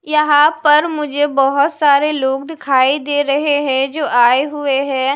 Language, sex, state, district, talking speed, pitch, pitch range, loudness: Hindi, female, Maharashtra, Mumbai Suburban, 165 wpm, 290 Hz, 275-300 Hz, -14 LUFS